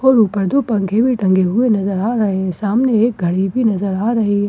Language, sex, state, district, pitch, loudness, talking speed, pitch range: Hindi, female, Bihar, Katihar, 210 Hz, -16 LUFS, 255 wpm, 195-235 Hz